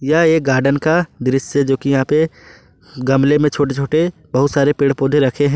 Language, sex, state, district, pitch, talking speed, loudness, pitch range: Hindi, male, Jharkhand, Ranchi, 140 Hz, 205 wpm, -16 LUFS, 135-150 Hz